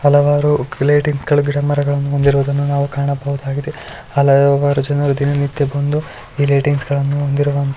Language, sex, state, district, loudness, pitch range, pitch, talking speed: Kannada, male, Karnataka, Shimoga, -16 LUFS, 140-145 Hz, 140 Hz, 110 wpm